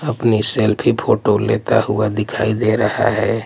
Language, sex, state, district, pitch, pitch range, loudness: Hindi, male, Punjab, Pathankot, 110 Hz, 105-115 Hz, -17 LUFS